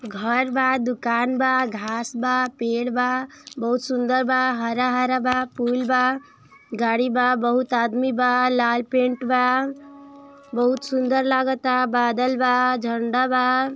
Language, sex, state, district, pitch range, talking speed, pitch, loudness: Hindi, female, Uttar Pradesh, Ghazipur, 245-260 Hz, 140 wpm, 250 Hz, -21 LUFS